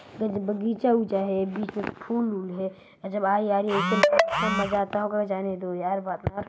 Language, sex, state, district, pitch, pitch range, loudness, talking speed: Hindi, male, Chhattisgarh, Balrampur, 200 Hz, 195-215 Hz, -26 LUFS, 155 wpm